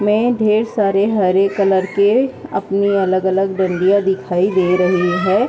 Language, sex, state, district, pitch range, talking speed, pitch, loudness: Hindi, female, Uttar Pradesh, Hamirpur, 185-200 Hz, 140 wpm, 195 Hz, -16 LUFS